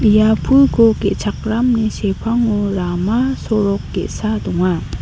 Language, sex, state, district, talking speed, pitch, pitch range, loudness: Garo, female, Meghalaya, North Garo Hills, 95 wpm, 215 Hz, 200-230 Hz, -16 LUFS